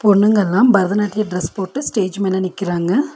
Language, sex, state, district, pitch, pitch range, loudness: Tamil, female, Tamil Nadu, Nilgiris, 200 Hz, 185-215 Hz, -17 LUFS